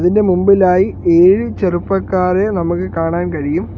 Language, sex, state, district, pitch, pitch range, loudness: Malayalam, male, Kerala, Kollam, 185 Hz, 175-195 Hz, -14 LUFS